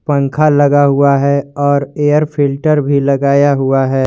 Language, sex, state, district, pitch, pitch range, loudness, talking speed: Hindi, male, Jharkhand, Garhwa, 140 Hz, 140-145 Hz, -12 LUFS, 160 wpm